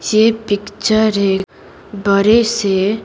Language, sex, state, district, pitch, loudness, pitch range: Hindi, female, Bihar, Patna, 205 Hz, -15 LUFS, 200-220 Hz